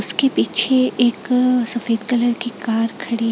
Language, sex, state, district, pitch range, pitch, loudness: Hindi, female, Chhattisgarh, Raipur, 225-250 Hz, 240 Hz, -18 LUFS